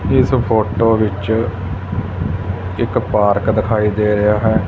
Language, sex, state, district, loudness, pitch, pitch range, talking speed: Punjabi, male, Punjab, Fazilka, -16 LUFS, 105 Hz, 100-110 Hz, 115 wpm